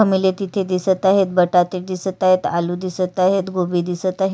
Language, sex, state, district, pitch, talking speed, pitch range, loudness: Marathi, female, Maharashtra, Sindhudurg, 185 Hz, 150 wpm, 180-190 Hz, -19 LUFS